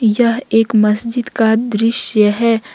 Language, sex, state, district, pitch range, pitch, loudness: Hindi, female, Jharkhand, Ranchi, 215-235 Hz, 225 Hz, -14 LUFS